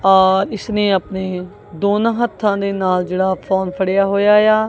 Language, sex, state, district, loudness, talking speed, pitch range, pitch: Punjabi, female, Punjab, Kapurthala, -16 LUFS, 155 wpm, 190-210 Hz, 195 Hz